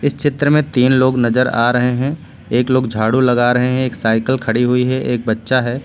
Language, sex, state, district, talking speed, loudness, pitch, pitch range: Hindi, male, Uttar Pradesh, Lucknow, 235 wpm, -15 LUFS, 125 Hz, 120-130 Hz